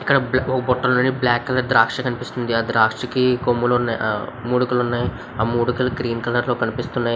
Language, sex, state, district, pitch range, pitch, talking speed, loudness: Telugu, male, Andhra Pradesh, Visakhapatnam, 120-125 Hz, 120 Hz, 100 wpm, -20 LUFS